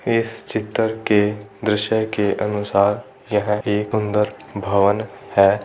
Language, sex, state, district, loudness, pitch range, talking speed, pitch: Hindi, male, Rajasthan, Churu, -20 LUFS, 105-110 Hz, 115 wpm, 105 Hz